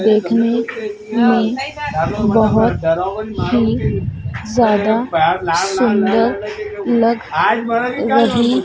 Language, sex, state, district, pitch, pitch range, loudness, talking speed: Hindi, female, Madhya Pradesh, Dhar, 225 Hz, 210-235 Hz, -16 LUFS, 55 wpm